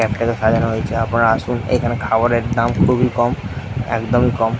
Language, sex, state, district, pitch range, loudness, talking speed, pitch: Bengali, male, West Bengal, Jhargram, 115-120 Hz, -17 LUFS, 145 wpm, 115 Hz